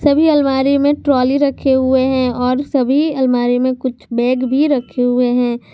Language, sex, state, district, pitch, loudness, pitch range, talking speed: Hindi, female, Jharkhand, Garhwa, 260 Hz, -15 LUFS, 250-280 Hz, 180 wpm